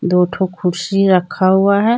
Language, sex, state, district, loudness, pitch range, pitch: Hindi, female, Jharkhand, Deoghar, -15 LUFS, 180-195 Hz, 185 Hz